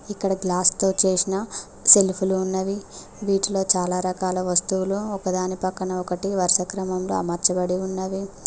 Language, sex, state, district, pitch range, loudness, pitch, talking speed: Telugu, female, Telangana, Mahabubabad, 185-195 Hz, -21 LUFS, 190 Hz, 135 wpm